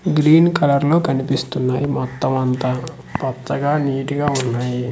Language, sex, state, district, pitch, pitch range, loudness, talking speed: Telugu, male, Andhra Pradesh, Manyam, 135 Hz, 130-150 Hz, -18 LUFS, 120 wpm